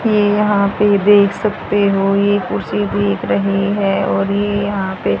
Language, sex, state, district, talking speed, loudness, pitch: Hindi, female, Haryana, Rohtak, 175 wpm, -15 LUFS, 195 Hz